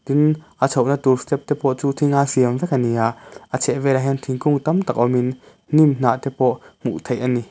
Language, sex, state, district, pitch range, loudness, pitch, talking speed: Mizo, male, Mizoram, Aizawl, 125-145 Hz, -19 LUFS, 135 Hz, 225 wpm